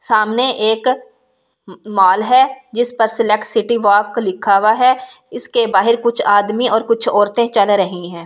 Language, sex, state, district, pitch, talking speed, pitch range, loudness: Hindi, female, Delhi, New Delhi, 220 Hz, 160 wpm, 205-235 Hz, -14 LUFS